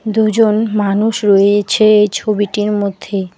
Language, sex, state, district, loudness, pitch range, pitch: Bengali, female, West Bengal, Alipurduar, -13 LUFS, 200-215 Hz, 210 Hz